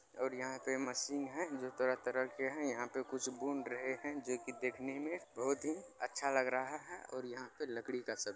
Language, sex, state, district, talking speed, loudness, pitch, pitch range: Maithili, male, Bihar, Supaul, 215 wpm, -40 LUFS, 130 Hz, 130-140 Hz